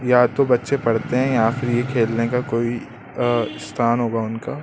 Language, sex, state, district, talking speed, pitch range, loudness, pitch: Hindi, male, Madhya Pradesh, Katni, 180 wpm, 115-125 Hz, -20 LUFS, 120 Hz